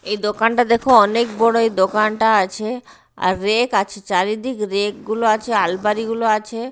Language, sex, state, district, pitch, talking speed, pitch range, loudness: Bengali, female, Odisha, Nuapada, 215 Hz, 150 wpm, 205-230 Hz, -18 LUFS